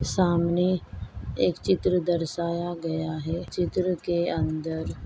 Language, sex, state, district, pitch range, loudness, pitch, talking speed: Hindi, female, Maharashtra, Chandrapur, 160-180 Hz, -27 LUFS, 170 Hz, 105 wpm